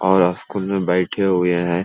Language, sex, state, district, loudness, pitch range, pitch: Hindi, male, Uttar Pradesh, Hamirpur, -19 LUFS, 90-95 Hz, 90 Hz